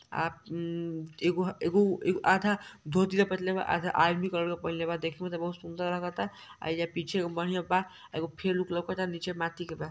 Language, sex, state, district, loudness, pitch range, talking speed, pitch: Bhojpuri, male, Uttar Pradesh, Ghazipur, -31 LUFS, 170-185 Hz, 195 wpm, 175 Hz